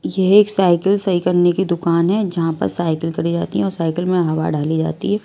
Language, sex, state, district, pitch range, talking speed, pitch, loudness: Hindi, female, Maharashtra, Washim, 160-190 Hz, 240 wpm, 175 Hz, -17 LUFS